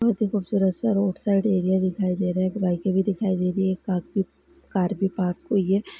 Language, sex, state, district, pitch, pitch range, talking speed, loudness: Hindi, female, Bihar, Sitamarhi, 190 Hz, 185-200 Hz, 240 wpm, -24 LUFS